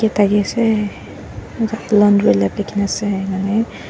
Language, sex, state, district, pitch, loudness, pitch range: Nagamese, female, Nagaland, Dimapur, 205 Hz, -17 LUFS, 190-215 Hz